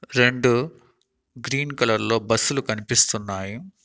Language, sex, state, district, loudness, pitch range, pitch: Telugu, male, Andhra Pradesh, Annamaya, -21 LUFS, 110-135 Hz, 120 Hz